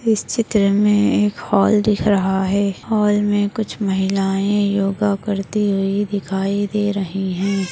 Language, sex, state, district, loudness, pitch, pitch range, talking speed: Hindi, female, Maharashtra, Solapur, -18 LUFS, 200 Hz, 195-210 Hz, 145 wpm